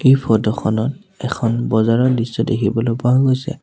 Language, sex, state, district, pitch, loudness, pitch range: Assamese, male, Assam, Sonitpur, 115 Hz, -17 LUFS, 110-130 Hz